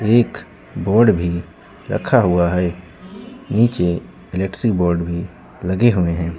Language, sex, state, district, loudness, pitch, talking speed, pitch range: Hindi, male, Uttar Pradesh, Lucknow, -18 LUFS, 90 Hz, 120 wpm, 85-105 Hz